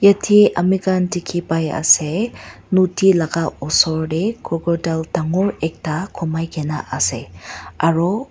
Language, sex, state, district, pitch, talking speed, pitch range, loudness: Nagamese, female, Nagaland, Dimapur, 170 Hz, 125 wpm, 160-190 Hz, -18 LUFS